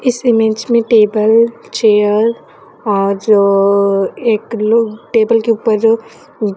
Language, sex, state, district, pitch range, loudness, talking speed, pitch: Hindi, female, Chhattisgarh, Raipur, 210-230 Hz, -13 LUFS, 120 wpm, 220 Hz